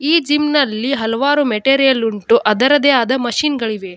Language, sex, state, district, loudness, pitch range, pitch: Kannada, female, Karnataka, Dakshina Kannada, -14 LUFS, 225-290 Hz, 260 Hz